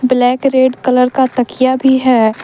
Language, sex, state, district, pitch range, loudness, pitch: Hindi, female, Jharkhand, Deoghar, 250-260 Hz, -12 LUFS, 255 Hz